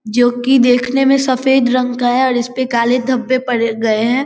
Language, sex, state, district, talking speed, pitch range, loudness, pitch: Hindi, female, Bihar, Vaishali, 225 wpm, 245-260 Hz, -14 LUFS, 250 Hz